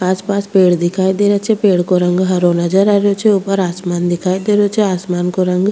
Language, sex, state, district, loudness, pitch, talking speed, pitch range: Rajasthani, female, Rajasthan, Churu, -14 LUFS, 185 Hz, 260 wpm, 180-200 Hz